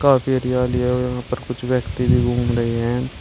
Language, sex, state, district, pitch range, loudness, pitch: Hindi, male, Uttar Pradesh, Shamli, 120-125 Hz, -20 LUFS, 125 Hz